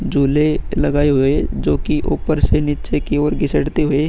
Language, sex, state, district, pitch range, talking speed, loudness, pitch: Hindi, female, Bihar, Vaishali, 140-150 Hz, 190 wpm, -17 LUFS, 145 Hz